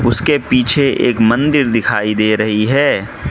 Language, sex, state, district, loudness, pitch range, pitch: Hindi, male, Mizoram, Aizawl, -13 LUFS, 110-140 Hz, 120 Hz